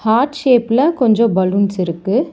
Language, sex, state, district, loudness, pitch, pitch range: Tamil, male, Tamil Nadu, Chennai, -15 LUFS, 230 Hz, 200-255 Hz